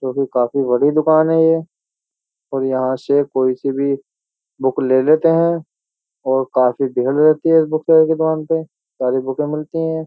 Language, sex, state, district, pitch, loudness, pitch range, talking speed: Hindi, male, Uttar Pradesh, Jyotiba Phule Nagar, 145 Hz, -17 LUFS, 130-160 Hz, 185 wpm